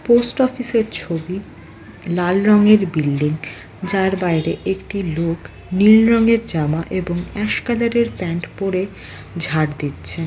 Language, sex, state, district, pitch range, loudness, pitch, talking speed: Bengali, female, West Bengal, Malda, 160-210 Hz, -18 LUFS, 185 Hz, 115 wpm